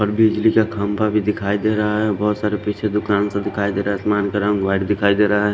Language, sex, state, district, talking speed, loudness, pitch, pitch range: Hindi, male, Bihar, Patna, 280 wpm, -19 LUFS, 105 Hz, 100-105 Hz